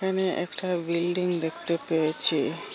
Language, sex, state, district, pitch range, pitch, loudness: Bengali, female, Assam, Hailakandi, 165-185 Hz, 170 Hz, -21 LUFS